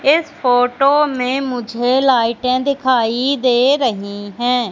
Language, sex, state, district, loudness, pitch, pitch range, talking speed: Hindi, female, Madhya Pradesh, Katni, -16 LUFS, 250 Hz, 240-270 Hz, 115 wpm